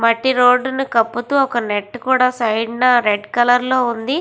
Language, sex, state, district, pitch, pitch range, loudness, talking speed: Telugu, female, Andhra Pradesh, Visakhapatnam, 245 Hz, 230-255 Hz, -16 LUFS, 170 wpm